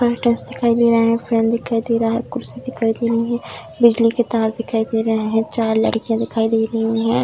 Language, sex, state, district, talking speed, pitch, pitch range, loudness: Hindi, female, Bihar, Darbhanga, 225 wpm, 230 Hz, 225-235 Hz, -18 LUFS